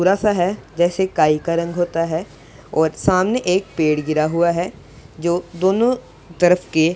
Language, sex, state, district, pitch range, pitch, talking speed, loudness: Hindi, female, Punjab, Pathankot, 160-185 Hz, 170 Hz, 165 wpm, -19 LUFS